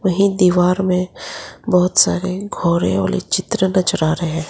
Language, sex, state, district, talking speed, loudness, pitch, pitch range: Hindi, female, Arunachal Pradesh, Lower Dibang Valley, 160 wpm, -17 LUFS, 180 Hz, 170-190 Hz